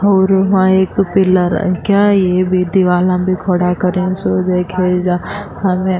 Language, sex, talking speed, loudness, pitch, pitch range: Urdu, female, 150 wpm, -14 LUFS, 185 Hz, 180-190 Hz